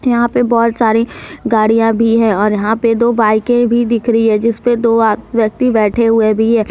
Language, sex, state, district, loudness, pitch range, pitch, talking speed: Hindi, female, Jharkhand, Deoghar, -13 LUFS, 220-235 Hz, 230 Hz, 225 wpm